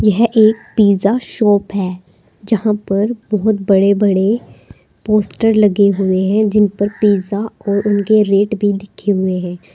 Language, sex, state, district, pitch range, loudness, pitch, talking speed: Hindi, female, Uttar Pradesh, Saharanpur, 200-215 Hz, -14 LUFS, 205 Hz, 150 wpm